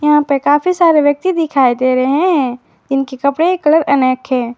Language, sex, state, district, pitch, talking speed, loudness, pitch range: Hindi, female, Jharkhand, Garhwa, 280 Hz, 195 wpm, -13 LUFS, 260-315 Hz